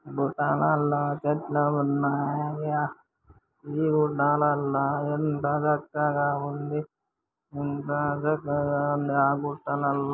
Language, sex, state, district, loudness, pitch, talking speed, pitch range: Telugu, male, Andhra Pradesh, Srikakulam, -26 LUFS, 145 Hz, 55 wpm, 145-150 Hz